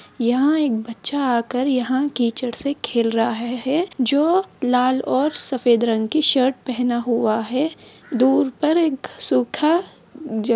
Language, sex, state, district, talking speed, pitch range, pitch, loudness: Hindi, female, Bihar, Madhepura, 140 wpm, 235-290 Hz, 255 Hz, -19 LUFS